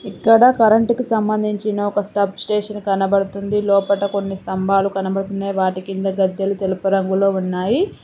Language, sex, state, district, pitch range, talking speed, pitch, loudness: Telugu, female, Telangana, Mahabubabad, 195-210 Hz, 135 wpm, 200 Hz, -18 LUFS